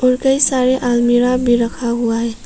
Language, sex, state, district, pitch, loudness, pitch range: Hindi, female, Arunachal Pradesh, Papum Pare, 245 Hz, -15 LUFS, 235-255 Hz